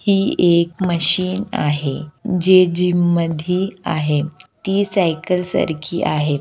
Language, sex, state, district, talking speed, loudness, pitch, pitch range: Marathi, female, Maharashtra, Aurangabad, 120 wpm, -17 LUFS, 175 Hz, 155-185 Hz